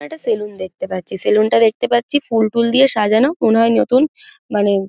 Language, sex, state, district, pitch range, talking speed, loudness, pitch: Bengali, female, West Bengal, Dakshin Dinajpur, 210-265 Hz, 195 wpm, -15 LUFS, 230 Hz